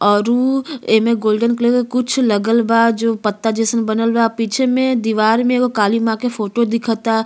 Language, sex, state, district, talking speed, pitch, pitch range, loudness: Bhojpuri, female, Uttar Pradesh, Gorakhpur, 180 wpm, 230 Hz, 220-245 Hz, -16 LUFS